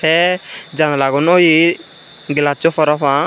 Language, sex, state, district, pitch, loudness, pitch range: Chakma, male, Tripura, Unakoti, 155 Hz, -14 LUFS, 145-165 Hz